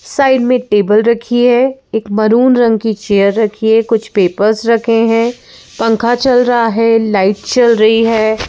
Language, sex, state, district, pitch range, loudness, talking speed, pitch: Hindi, female, Madhya Pradesh, Bhopal, 215-240 Hz, -11 LUFS, 170 wpm, 225 Hz